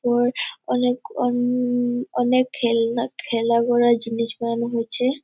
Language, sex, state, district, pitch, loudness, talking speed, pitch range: Bengali, female, West Bengal, Purulia, 245 Hz, -21 LUFS, 115 wpm, 235-245 Hz